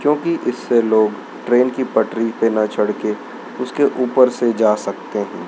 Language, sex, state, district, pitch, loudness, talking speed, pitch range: Hindi, male, Madhya Pradesh, Dhar, 120 Hz, -18 LUFS, 175 wpm, 110-125 Hz